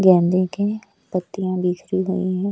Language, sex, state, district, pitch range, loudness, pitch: Hindi, male, Odisha, Nuapada, 185-195 Hz, -21 LUFS, 185 Hz